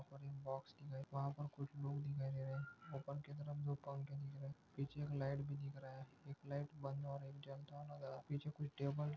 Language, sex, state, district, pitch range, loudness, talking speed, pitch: Hindi, male, Maharashtra, Chandrapur, 135-145 Hz, -48 LUFS, 270 wpm, 140 Hz